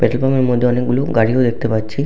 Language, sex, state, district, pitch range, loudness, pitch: Bengali, male, West Bengal, Malda, 115-130 Hz, -16 LUFS, 125 Hz